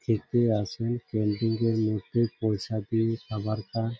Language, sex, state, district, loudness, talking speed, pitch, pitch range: Bengali, male, West Bengal, Jhargram, -28 LUFS, 150 wpm, 110 Hz, 110-115 Hz